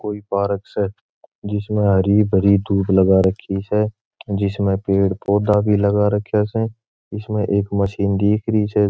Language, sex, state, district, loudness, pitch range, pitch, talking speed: Marwari, male, Rajasthan, Churu, -19 LUFS, 100-105 Hz, 100 Hz, 155 wpm